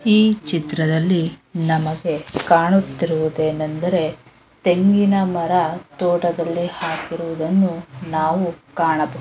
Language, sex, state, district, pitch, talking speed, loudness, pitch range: Kannada, female, Karnataka, Mysore, 170 Hz, 65 wpm, -19 LUFS, 160-180 Hz